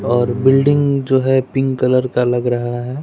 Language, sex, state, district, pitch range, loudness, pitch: Hindi, male, Bihar, West Champaran, 120-135 Hz, -16 LUFS, 130 Hz